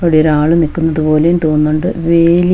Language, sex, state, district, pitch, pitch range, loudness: Malayalam, female, Kerala, Wayanad, 165 Hz, 155-170 Hz, -12 LUFS